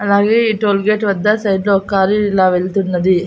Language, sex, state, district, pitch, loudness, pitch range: Telugu, female, Andhra Pradesh, Annamaya, 200 Hz, -14 LUFS, 190-210 Hz